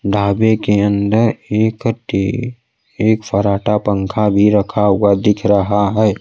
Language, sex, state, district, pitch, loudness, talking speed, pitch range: Hindi, male, Bihar, Kaimur, 105 Hz, -15 LUFS, 135 wpm, 100-110 Hz